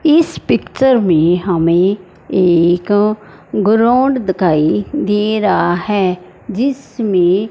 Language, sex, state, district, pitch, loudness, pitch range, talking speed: Hindi, female, Punjab, Fazilka, 195 Hz, -14 LUFS, 175-220 Hz, 90 wpm